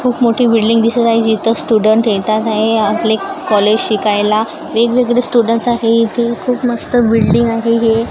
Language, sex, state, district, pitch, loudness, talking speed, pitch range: Marathi, female, Maharashtra, Gondia, 230 Hz, -13 LUFS, 155 wpm, 220-235 Hz